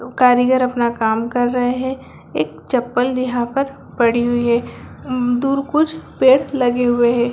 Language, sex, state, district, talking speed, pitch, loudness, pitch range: Hindi, male, Bihar, Darbhanga, 165 wpm, 245 Hz, -17 LUFS, 240-260 Hz